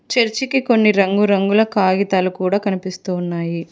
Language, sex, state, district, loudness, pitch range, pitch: Telugu, female, Telangana, Hyderabad, -17 LUFS, 185-220 Hz, 200 Hz